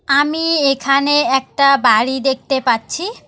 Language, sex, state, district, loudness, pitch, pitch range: Bengali, female, West Bengal, Alipurduar, -15 LUFS, 275 Hz, 265-295 Hz